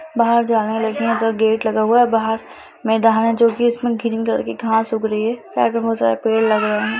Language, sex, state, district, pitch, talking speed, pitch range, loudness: Hindi, female, Bihar, Lakhisarai, 225 Hz, 255 wpm, 220-230 Hz, -18 LUFS